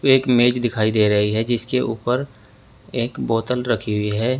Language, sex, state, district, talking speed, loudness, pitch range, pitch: Hindi, male, Uttar Pradesh, Saharanpur, 175 wpm, -19 LUFS, 110-125 Hz, 120 Hz